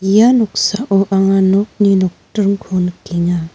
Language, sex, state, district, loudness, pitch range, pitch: Garo, female, Meghalaya, North Garo Hills, -14 LUFS, 180-205 Hz, 195 Hz